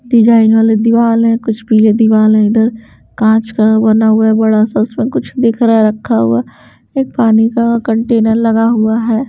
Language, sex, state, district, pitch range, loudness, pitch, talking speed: Hindi, female, Bihar, Patna, 220-230 Hz, -11 LUFS, 225 Hz, 195 wpm